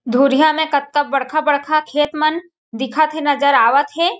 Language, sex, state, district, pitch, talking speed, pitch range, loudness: Chhattisgarhi, female, Chhattisgarh, Jashpur, 295 Hz, 155 wpm, 280-310 Hz, -16 LUFS